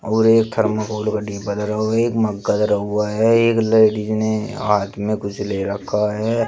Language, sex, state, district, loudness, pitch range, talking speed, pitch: Hindi, male, Uttar Pradesh, Shamli, -19 LUFS, 105-110 Hz, 205 wpm, 110 Hz